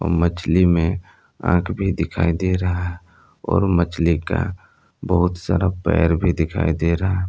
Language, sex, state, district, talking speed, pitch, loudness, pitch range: Hindi, male, Jharkhand, Palamu, 140 wpm, 90 Hz, -20 LUFS, 85-95 Hz